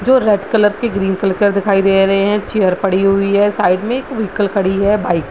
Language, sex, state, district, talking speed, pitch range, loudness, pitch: Hindi, female, Bihar, Madhepura, 270 wpm, 195-210 Hz, -14 LUFS, 200 Hz